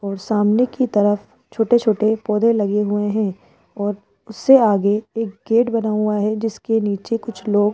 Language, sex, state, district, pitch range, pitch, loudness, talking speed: Hindi, female, Rajasthan, Jaipur, 205-225 Hz, 215 Hz, -19 LUFS, 180 wpm